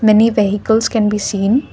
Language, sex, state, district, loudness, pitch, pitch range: English, female, Assam, Kamrup Metropolitan, -14 LUFS, 215 Hz, 205-225 Hz